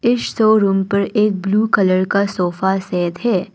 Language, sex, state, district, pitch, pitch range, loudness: Hindi, female, Arunachal Pradesh, Papum Pare, 200 Hz, 190-215 Hz, -16 LUFS